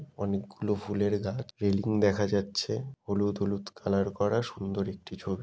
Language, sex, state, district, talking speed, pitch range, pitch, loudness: Bengali, male, West Bengal, Dakshin Dinajpur, 145 wpm, 100-105 Hz, 100 Hz, -30 LUFS